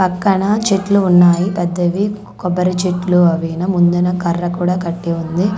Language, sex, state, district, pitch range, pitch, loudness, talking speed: Telugu, female, Andhra Pradesh, Manyam, 175-190 Hz, 180 Hz, -15 LUFS, 140 wpm